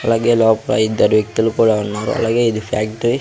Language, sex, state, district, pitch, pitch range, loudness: Telugu, male, Andhra Pradesh, Sri Satya Sai, 110 Hz, 110-115 Hz, -16 LUFS